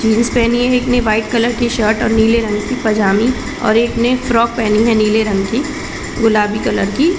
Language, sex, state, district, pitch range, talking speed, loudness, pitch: Hindi, female, Chhattisgarh, Bilaspur, 215-245 Hz, 210 wpm, -14 LUFS, 230 Hz